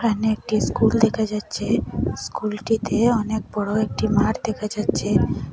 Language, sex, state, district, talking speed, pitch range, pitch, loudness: Bengali, female, Assam, Hailakandi, 130 wpm, 210-225 Hz, 215 Hz, -22 LUFS